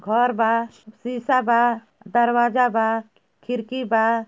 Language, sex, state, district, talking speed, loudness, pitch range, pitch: Bhojpuri, female, Uttar Pradesh, Ghazipur, 110 wpm, -21 LUFS, 225-245 Hz, 235 Hz